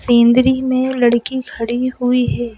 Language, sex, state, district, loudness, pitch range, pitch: Hindi, female, Madhya Pradesh, Bhopal, -15 LUFS, 240-260 Hz, 250 Hz